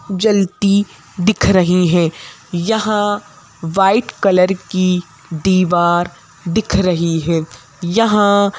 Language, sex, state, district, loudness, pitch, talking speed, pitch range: Hindi, female, Madhya Pradesh, Bhopal, -15 LUFS, 185 Hz, 90 wpm, 170-200 Hz